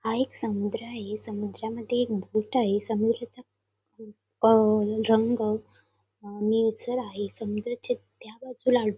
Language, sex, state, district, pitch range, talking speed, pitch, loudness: Marathi, female, Maharashtra, Sindhudurg, 215-235 Hz, 115 wpm, 220 Hz, -27 LUFS